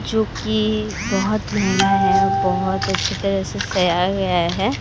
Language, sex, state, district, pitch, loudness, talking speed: Hindi, female, Odisha, Sambalpur, 175 Hz, -19 LUFS, 135 wpm